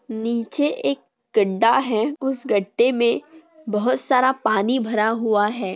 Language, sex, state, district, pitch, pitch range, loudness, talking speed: Hindi, female, Maharashtra, Pune, 230 Hz, 215-255 Hz, -21 LUFS, 135 wpm